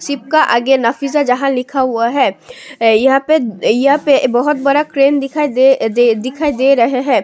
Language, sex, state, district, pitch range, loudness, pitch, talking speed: Hindi, female, Assam, Sonitpur, 250-285 Hz, -13 LUFS, 270 Hz, 165 wpm